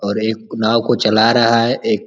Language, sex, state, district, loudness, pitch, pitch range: Hindi, male, Uttar Pradesh, Ghazipur, -15 LUFS, 115 Hz, 110-115 Hz